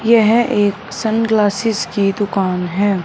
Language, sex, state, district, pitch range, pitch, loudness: Hindi, male, Punjab, Fazilka, 195-225 Hz, 205 Hz, -16 LUFS